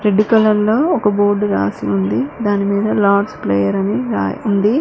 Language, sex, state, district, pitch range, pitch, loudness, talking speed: Telugu, female, Telangana, Mahabubabad, 200-215 Hz, 205 Hz, -16 LUFS, 150 wpm